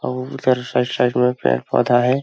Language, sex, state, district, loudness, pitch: Hindi, male, Chhattisgarh, Balrampur, -19 LUFS, 125 Hz